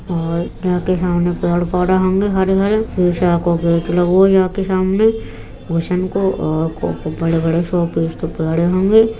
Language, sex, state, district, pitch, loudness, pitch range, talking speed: Hindi, female, Uttar Pradesh, Etah, 175 Hz, -16 LUFS, 165-190 Hz, 105 wpm